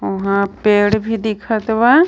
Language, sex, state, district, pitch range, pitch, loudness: Bhojpuri, female, Jharkhand, Palamu, 200-225 Hz, 215 Hz, -16 LUFS